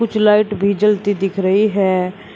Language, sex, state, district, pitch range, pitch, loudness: Hindi, male, Uttar Pradesh, Shamli, 195-210 Hz, 205 Hz, -16 LUFS